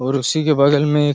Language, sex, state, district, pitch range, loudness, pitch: Hindi, male, Chhattisgarh, Raigarh, 140-150 Hz, -16 LUFS, 145 Hz